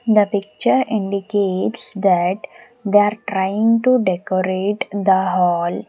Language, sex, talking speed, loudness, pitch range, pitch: English, female, 110 wpm, -18 LUFS, 190-220 Hz, 200 Hz